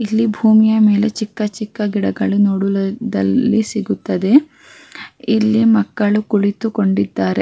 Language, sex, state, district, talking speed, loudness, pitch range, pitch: Kannada, female, Karnataka, Raichur, 90 wpm, -16 LUFS, 200-220 Hz, 215 Hz